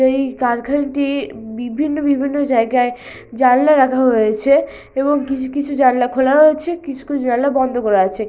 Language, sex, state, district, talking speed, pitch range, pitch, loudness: Bengali, female, West Bengal, Malda, 150 wpm, 245-285 Hz, 265 Hz, -16 LUFS